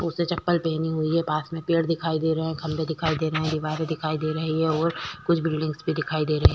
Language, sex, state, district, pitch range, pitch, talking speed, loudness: Hindi, female, Bihar, Vaishali, 155-165 Hz, 160 Hz, 295 wpm, -25 LUFS